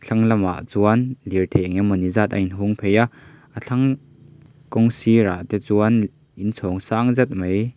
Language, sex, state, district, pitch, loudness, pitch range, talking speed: Mizo, male, Mizoram, Aizawl, 110 Hz, -20 LUFS, 100-125 Hz, 160 wpm